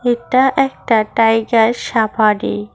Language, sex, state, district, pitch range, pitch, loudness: Bengali, female, West Bengal, Cooch Behar, 215-240 Hz, 225 Hz, -15 LUFS